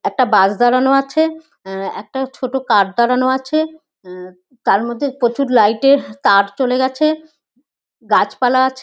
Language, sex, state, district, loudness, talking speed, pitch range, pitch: Bengali, female, West Bengal, North 24 Parganas, -16 LUFS, 150 wpm, 210-275 Hz, 260 Hz